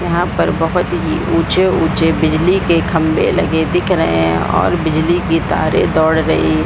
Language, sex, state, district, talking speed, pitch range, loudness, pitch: Hindi, female, Bihar, Supaul, 170 wpm, 160-175 Hz, -14 LUFS, 165 Hz